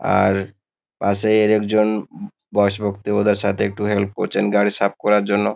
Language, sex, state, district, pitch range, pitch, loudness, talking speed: Bengali, male, West Bengal, Kolkata, 100-105 Hz, 105 Hz, -19 LUFS, 130 wpm